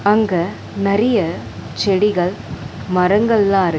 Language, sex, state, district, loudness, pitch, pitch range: Tamil, female, Tamil Nadu, Chennai, -17 LUFS, 200 Hz, 180-210 Hz